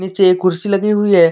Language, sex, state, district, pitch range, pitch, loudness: Hindi, male, Jharkhand, Deoghar, 185-205 Hz, 190 Hz, -14 LUFS